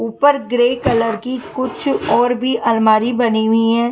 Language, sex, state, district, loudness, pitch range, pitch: Hindi, female, Punjab, Kapurthala, -16 LUFS, 225-255 Hz, 235 Hz